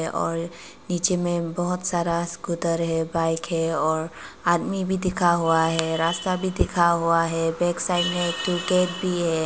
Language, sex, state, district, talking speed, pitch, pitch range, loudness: Hindi, female, Arunachal Pradesh, Papum Pare, 180 wpm, 170 Hz, 165-180 Hz, -23 LUFS